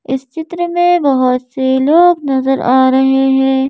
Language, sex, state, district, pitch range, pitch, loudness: Hindi, female, Madhya Pradesh, Bhopal, 260-320 Hz, 265 Hz, -12 LUFS